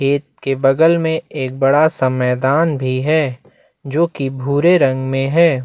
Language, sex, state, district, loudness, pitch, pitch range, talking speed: Hindi, male, Chhattisgarh, Bastar, -16 LUFS, 140 Hz, 130-160 Hz, 170 wpm